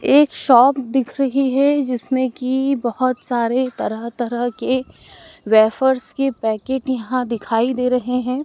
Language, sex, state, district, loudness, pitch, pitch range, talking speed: Hindi, female, Madhya Pradesh, Dhar, -18 LUFS, 255 Hz, 240-265 Hz, 140 wpm